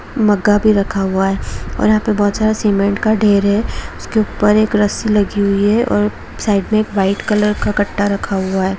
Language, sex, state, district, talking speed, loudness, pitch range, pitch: Hindi, female, Jharkhand, Jamtara, 220 wpm, -15 LUFS, 200-215 Hz, 205 Hz